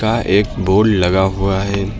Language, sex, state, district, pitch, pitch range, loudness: Hindi, male, Uttar Pradesh, Lucknow, 100 Hz, 95-105 Hz, -15 LUFS